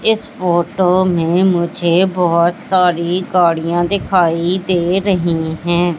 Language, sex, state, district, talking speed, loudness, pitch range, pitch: Hindi, female, Madhya Pradesh, Katni, 110 wpm, -15 LUFS, 170-185 Hz, 175 Hz